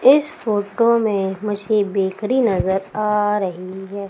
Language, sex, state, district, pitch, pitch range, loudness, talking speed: Hindi, female, Madhya Pradesh, Umaria, 205 Hz, 195-220 Hz, -19 LUFS, 130 wpm